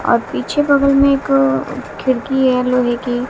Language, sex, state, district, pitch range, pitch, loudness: Hindi, female, Bihar, West Champaran, 240-275 Hz, 250 Hz, -15 LUFS